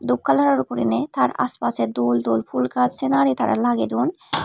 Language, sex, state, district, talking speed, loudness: Chakma, female, Tripura, Dhalai, 175 wpm, -21 LUFS